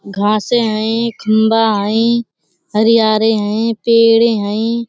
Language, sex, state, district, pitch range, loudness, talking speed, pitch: Hindi, female, Uttar Pradesh, Budaun, 215-230 Hz, -13 LUFS, 100 wpm, 225 Hz